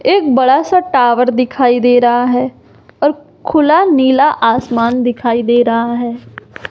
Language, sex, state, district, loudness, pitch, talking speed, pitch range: Hindi, female, Madhya Pradesh, Umaria, -12 LUFS, 250 Hz, 145 wpm, 240-285 Hz